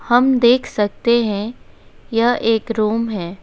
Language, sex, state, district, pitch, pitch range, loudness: Hindi, female, West Bengal, Alipurduar, 230 Hz, 215-240 Hz, -17 LUFS